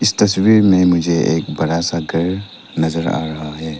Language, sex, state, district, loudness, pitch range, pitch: Hindi, male, Arunachal Pradesh, Lower Dibang Valley, -16 LUFS, 80-95 Hz, 85 Hz